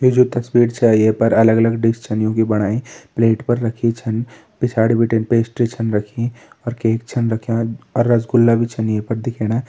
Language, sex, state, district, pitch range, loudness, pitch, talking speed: Hindi, male, Uttarakhand, Tehri Garhwal, 110-120 Hz, -17 LUFS, 115 Hz, 205 wpm